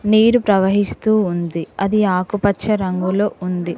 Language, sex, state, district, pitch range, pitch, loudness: Telugu, female, Telangana, Mahabubabad, 180-210 Hz, 200 Hz, -17 LUFS